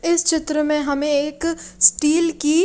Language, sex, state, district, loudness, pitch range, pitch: Hindi, female, Haryana, Rohtak, -18 LUFS, 300-330 Hz, 305 Hz